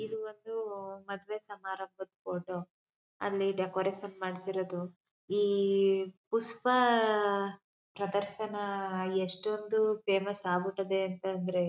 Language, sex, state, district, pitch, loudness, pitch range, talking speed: Kannada, female, Karnataka, Chamarajanagar, 195 Hz, -33 LUFS, 190-205 Hz, 85 wpm